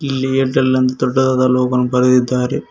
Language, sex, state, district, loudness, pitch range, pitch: Kannada, male, Karnataka, Koppal, -15 LUFS, 125-130 Hz, 130 Hz